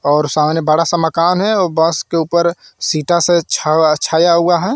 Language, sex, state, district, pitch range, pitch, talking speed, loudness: Hindi, male, Jharkhand, Garhwa, 155-175 Hz, 165 Hz, 200 wpm, -14 LUFS